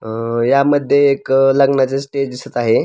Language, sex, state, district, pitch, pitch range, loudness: Marathi, male, Maharashtra, Pune, 135 Hz, 125-140 Hz, -15 LUFS